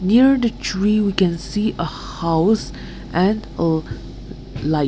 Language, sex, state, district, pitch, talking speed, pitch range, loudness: English, female, Nagaland, Kohima, 175 Hz, 135 wpm, 150-210 Hz, -19 LUFS